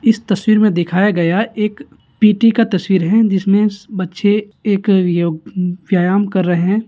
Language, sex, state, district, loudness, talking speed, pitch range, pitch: Hindi, male, Bihar, Gaya, -15 LUFS, 155 wpm, 185-215 Hz, 200 Hz